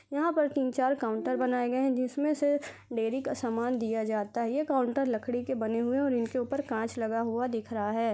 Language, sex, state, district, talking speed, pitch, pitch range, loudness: Hindi, female, Chhattisgarh, Rajnandgaon, 235 wpm, 250 Hz, 230-270 Hz, -30 LUFS